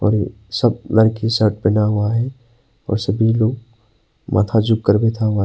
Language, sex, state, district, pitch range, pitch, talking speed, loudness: Hindi, male, Arunachal Pradesh, Papum Pare, 105-115 Hz, 110 Hz, 130 wpm, -18 LUFS